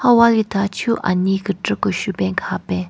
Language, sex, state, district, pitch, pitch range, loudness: Rengma, female, Nagaland, Kohima, 195 Hz, 180-230 Hz, -19 LUFS